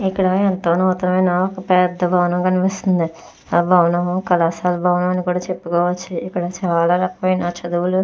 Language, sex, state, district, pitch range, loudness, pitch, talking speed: Telugu, female, Andhra Pradesh, Chittoor, 175-185 Hz, -18 LUFS, 180 Hz, 140 wpm